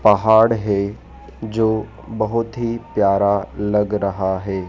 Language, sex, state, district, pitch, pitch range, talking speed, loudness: Hindi, male, Madhya Pradesh, Dhar, 105 Hz, 100-110 Hz, 115 wpm, -19 LUFS